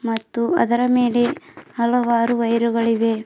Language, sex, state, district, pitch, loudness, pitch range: Kannada, female, Karnataka, Bidar, 235 Hz, -19 LUFS, 230-245 Hz